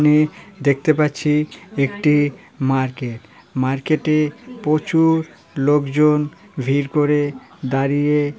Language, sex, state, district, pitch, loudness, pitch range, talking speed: Bengali, male, West Bengal, Jhargram, 150 Hz, -19 LUFS, 140-155 Hz, 85 wpm